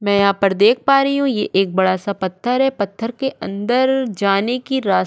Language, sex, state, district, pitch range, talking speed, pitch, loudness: Hindi, female, Goa, North and South Goa, 195-265 Hz, 215 wpm, 215 Hz, -17 LUFS